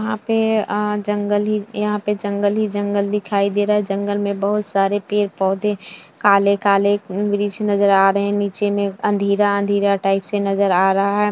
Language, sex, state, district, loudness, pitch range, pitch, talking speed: Hindi, female, Bihar, Jamui, -18 LUFS, 200-210 Hz, 205 Hz, 180 wpm